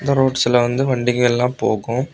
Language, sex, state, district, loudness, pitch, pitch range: Tamil, male, Tamil Nadu, Kanyakumari, -17 LUFS, 125 Hz, 120-135 Hz